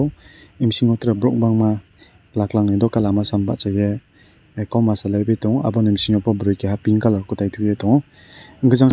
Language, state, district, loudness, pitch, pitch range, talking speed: Kokborok, Tripura, West Tripura, -19 LUFS, 110 Hz, 100-115 Hz, 180 wpm